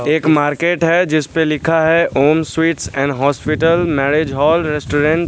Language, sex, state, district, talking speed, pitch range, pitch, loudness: Hindi, male, Bihar, West Champaran, 160 wpm, 145-165 Hz, 155 Hz, -15 LUFS